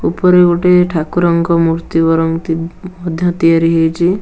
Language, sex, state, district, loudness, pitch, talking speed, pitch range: Odia, male, Odisha, Nuapada, -12 LUFS, 170 Hz, 115 wpm, 165-180 Hz